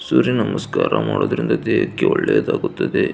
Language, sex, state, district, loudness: Kannada, male, Karnataka, Belgaum, -19 LUFS